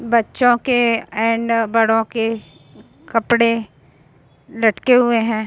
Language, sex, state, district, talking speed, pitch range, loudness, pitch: Hindi, female, Chhattisgarh, Balrampur, 110 wpm, 220-235 Hz, -17 LUFS, 230 Hz